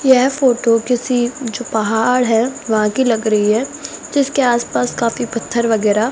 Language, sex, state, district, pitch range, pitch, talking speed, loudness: Hindi, female, Rajasthan, Bikaner, 225-255 Hz, 235 Hz, 155 wpm, -16 LUFS